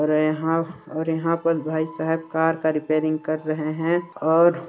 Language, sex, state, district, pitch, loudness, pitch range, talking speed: Hindi, male, Chhattisgarh, Sarguja, 160 Hz, -23 LUFS, 155-165 Hz, 190 wpm